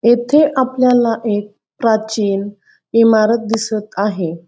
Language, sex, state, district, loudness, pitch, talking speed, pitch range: Marathi, female, Maharashtra, Pune, -15 LUFS, 220 Hz, 95 wpm, 205-235 Hz